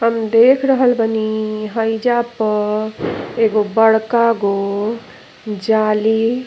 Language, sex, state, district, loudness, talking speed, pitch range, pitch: Bhojpuri, female, Uttar Pradesh, Deoria, -16 LUFS, 95 wpm, 215-230 Hz, 220 Hz